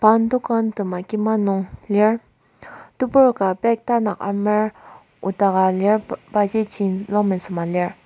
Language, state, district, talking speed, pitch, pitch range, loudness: Ao, Nagaland, Kohima, 140 wpm, 210 Hz, 195-220 Hz, -20 LUFS